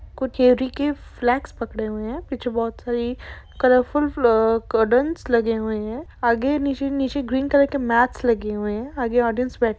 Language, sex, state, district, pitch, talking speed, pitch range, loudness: Hindi, female, Jharkhand, Sahebganj, 245 Hz, 160 wpm, 230-270 Hz, -21 LUFS